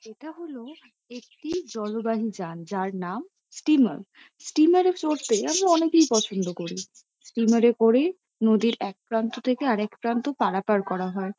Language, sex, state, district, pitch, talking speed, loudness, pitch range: Bengali, female, West Bengal, Kolkata, 230 Hz, 145 wpm, -24 LUFS, 210-300 Hz